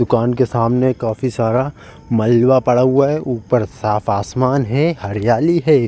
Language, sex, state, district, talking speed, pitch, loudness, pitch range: Hindi, male, Uttar Pradesh, Jalaun, 155 wpm, 125 Hz, -16 LUFS, 115-130 Hz